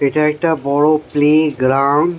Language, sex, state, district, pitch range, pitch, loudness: Bengali, male, West Bengal, Jhargram, 140-155 Hz, 150 Hz, -14 LUFS